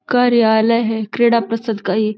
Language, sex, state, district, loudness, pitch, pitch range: Hindi, female, Uttar Pradesh, Deoria, -16 LUFS, 225 Hz, 220-235 Hz